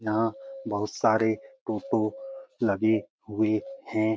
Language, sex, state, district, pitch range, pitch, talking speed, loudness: Hindi, male, Bihar, Lakhisarai, 110-135 Hz, 110 Hz, 100 wpm, -28 LUFS